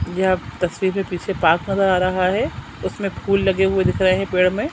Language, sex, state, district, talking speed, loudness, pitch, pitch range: Hindi, female, Chhattisgarh, Sukma, 230 wpm, -19 LUFS, 190 Hz, 185-195 Hz